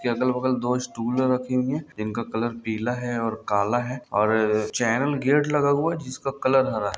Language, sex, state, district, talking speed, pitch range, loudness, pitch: Hindi, male, Bihar, Samastipur, 205 wpm, 110-130 Hz, -24 LUFS, 125 Hz